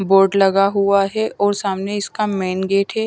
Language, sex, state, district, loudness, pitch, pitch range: Hindi, female, Himachal Pradesh, Shimla, -17 LUFS, 200 Hz, 195-205 Hz